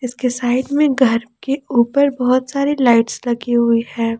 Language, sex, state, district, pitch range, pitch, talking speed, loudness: Hindi, female, Jharkhand, Ranchi, 235-270 Hz, 250 Hz, 170 wpm, -17 LUFS